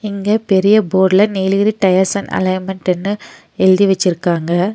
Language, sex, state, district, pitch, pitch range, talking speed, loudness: Tamil, female, Tamil Nadu, Nilgiris, 190 Hz, 185-205 Hz, 115 wpm, -14 LUFS